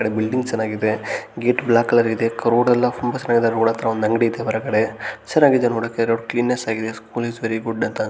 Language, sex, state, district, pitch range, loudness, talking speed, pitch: Kannada, male, Karnataka, Gulbarga, 110-120 Hz, -20 LUFS, 205 wpm, 115 Hz